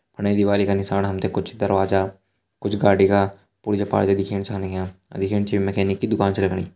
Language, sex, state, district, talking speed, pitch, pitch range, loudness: Hindi, male, Uttarakhand, Tehri Garhwal, 220 wpm, 100 Hz, 95-100 Hz, -21 LUFS